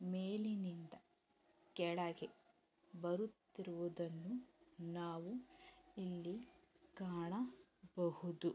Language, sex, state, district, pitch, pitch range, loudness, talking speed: Kannada, female, Karnataka, Bellary, 185 Hz, 175-250 Hz, -46 LUFS, 40 wpm